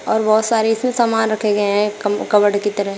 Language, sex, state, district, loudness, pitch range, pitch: Hindi, female, Uttar Pradesh, Shamli, -17 LUFS, 205-225 Hz, 210 Hz